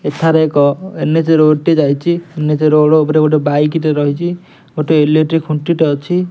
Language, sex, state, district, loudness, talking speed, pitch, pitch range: Odia, male, Odisha, Nuapada, -13 LUFS, 160 wpm, 155 Hz, 150-165 Hz